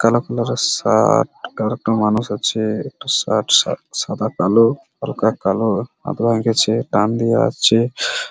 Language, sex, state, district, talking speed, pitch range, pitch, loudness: Bengali, male, West Bengal, Purulia, 100 wpm, 110-120 Hz, 115 Hz, -17 LUFS